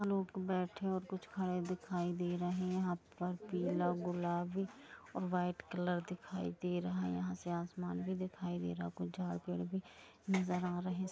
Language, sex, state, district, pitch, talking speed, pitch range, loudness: Hindi, female, Chhattisgarh, Rajnandgaon, 180 Hz, 210 wpm, 175-185 Hz, -40 LUFS